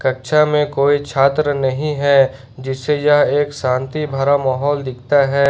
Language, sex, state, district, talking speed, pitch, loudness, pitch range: Hindi, male, Jharkhand, Ranchi, 155 wpm, 140 Hz, -16 LUFS, 135-145 Hz